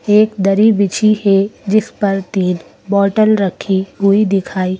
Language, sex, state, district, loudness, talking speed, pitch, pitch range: Hindi, female, Madhya Pradesh, Bhopal, -14 LUFS, 140 wpm, 200 Hz, 190-210 Hz